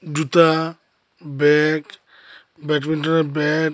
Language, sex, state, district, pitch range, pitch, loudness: Bengali, male, Tripura, Unakoti, 150-160 Hz, 155 Hz, -18 LUFS